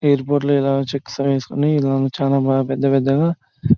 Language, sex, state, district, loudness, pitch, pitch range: Telugu, male, Andhra Pradesh, Chittoor, -18 LUFS, 140 Hz, 135-145 Hz